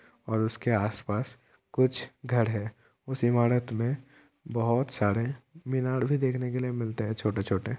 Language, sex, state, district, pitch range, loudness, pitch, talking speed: Hindi, male, Bihar, Kishanganj, 110-130 Hz, -29 LUFS, 120 Hz, 155 wpm